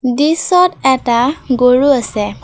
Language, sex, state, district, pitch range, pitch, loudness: Assamese, female, Assam, Kamrup Metropolitan, 250-295 Hz, 260 Hz, -13 LUFS